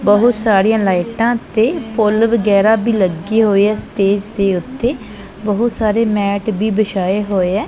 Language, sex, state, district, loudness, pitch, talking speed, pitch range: Punjabi, female, Punjab, Pathankot, -15 LUFS, 210 Hz, 155 wpm, 200-225 Hz